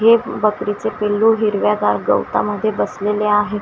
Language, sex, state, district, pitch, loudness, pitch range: Marathi, female, Maharashtra, Washim, 210 Hz, -17 LUFS, 205-215 Hz